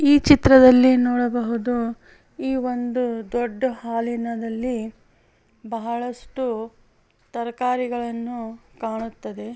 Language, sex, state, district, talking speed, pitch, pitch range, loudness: Kannada, female, Karnataka, Bellary, 70 wpm, 240 Hz, 230-250 Hz, -21 LUFS